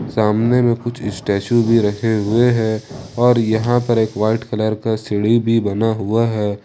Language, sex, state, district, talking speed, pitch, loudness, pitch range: Hindi, male, Jharkhand, Ranchi, 180 wpm, 110 Hz, -17 LUFS, 105-120 Hz